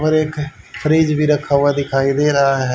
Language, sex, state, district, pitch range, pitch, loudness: Hindi, male, Haryana, Rohtak, 140-150 Hz, 150 Hz, -16 LUFS